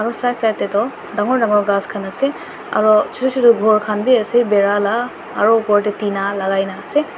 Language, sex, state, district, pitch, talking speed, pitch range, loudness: Nagamese, male, Nagaland, Dimapur, 215 Hz, 215 wpm, 205-240 Hz, -16 LUFS